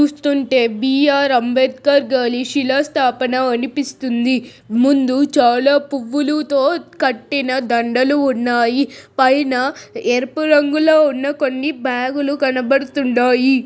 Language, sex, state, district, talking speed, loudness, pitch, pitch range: Telugu, male, Telangana, Nalgonda, 85 wpm, -16 LUFS, 270 Hz, 255-285 Hz